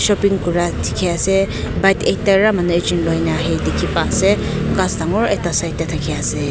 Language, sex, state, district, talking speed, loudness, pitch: Nagamese, female, Nagaland, Kohima, 205 wpm, -17 LUFS, 175 Hz